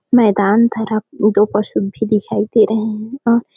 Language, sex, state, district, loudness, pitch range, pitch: Hindi, female, Chhattisgarh, Sarguja, -16 LUFS, 210-225 Hz, 215 Hz